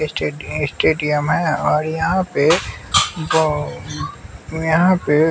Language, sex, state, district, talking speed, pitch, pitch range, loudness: Hindi, male, Bihar, West Champaran, 100 wpm, 160 Hz, 150-160 Hz, -18 LUFS